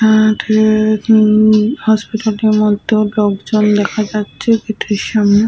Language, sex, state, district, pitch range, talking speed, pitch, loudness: Bengali, female, West Bengal, Paschim Medinipur, 210-220 Hz, 140 wpm, 215 Hz, -13 LUFS